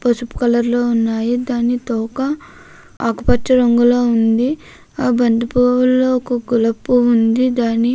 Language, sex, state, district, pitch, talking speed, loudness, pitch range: Telugu, female, Andhra Pradesh, Krishna, 240 Hz, 70 wpm, -16 LUFS, 230-250 Hz